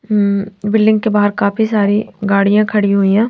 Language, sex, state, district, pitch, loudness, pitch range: Hindi, female, Bihar, Patna, 210 Hz, -14 LUFS, 200-215 Hz